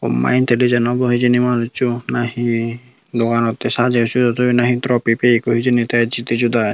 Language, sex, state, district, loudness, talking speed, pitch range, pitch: Chakma, female, Tripura, Unakoti, -16 LUFS, 160 wpm, 115-125 Hz, 120 Hz